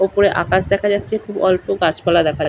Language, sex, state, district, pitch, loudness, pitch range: Bengali, male, West Bengal, Kolkata, 190 Hz, -17 LUFS, 175-200 Hz